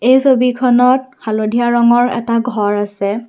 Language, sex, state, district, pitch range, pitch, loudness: Assamese, female, Assam, Kamrup Metropolitan, 215-250 Hz, 240 Hz, -14 LUFS